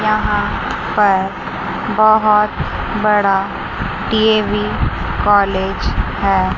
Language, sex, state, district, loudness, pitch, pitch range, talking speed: Hindi, female, Chandigarh, Chandigarh, -16 LUFS, 210 Hz, 195-215 Hz, 65 wpm